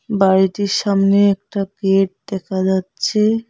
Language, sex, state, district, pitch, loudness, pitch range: Bengali, female, West Bengal, Cooch Behar, 195 Hz, -17 LUFS, 190-205 Hz